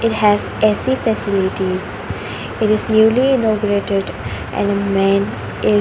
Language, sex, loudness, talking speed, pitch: English, female, -17 LUFS, 135 wpm, 200 Hz